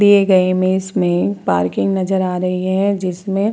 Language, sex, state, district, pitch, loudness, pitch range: Hindi, female, Bihar, Vaishali, 185 Hz, -16 LUFS, 180-195 Hz